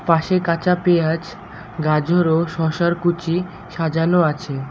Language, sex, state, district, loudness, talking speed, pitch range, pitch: Bengali, male, West Bengal, Alipurduar, -19 LUFS, 115 wpm, 160-175 Hz, 165 Hz